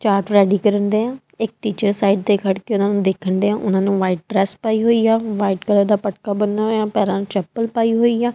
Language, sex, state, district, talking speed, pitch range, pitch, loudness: Punjabi, female, Punjab, Kapurthala, 235 wpm, 195-220 Hz, 205 Hz, -18 LUFS